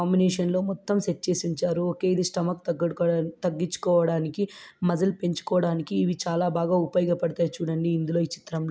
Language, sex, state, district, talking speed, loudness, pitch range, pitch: Telugu, female, Andhra Pradesh, Guntur, 150 wpm, -26 LUFS, 170-180 Hz, 175 Hz